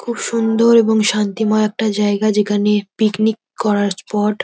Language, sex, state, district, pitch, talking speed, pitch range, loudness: Bengali, female, West Bengal, North 24 Parganas, 215 Hz, 150 wpm, 210-220 Hz, -16 LUFS